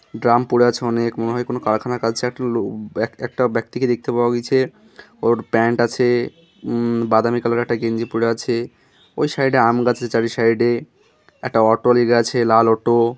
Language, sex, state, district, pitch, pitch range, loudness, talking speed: Bengali, male, West Bengal, Jhargram, 120 Hz, 115-125 Hz, -18 LUFS, 185 wpm